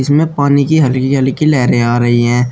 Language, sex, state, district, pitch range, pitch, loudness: Hindi, male, Uttar Pradesh, Shamli, 120-145 Hz, 135 Hz, -12 LUFS